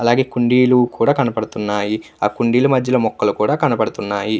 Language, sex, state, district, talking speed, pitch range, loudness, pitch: Telugu, male, Andhra Pradesh, Krishna, 110 wpm, 105-125 Hz, -17 LUFS, 120 Hz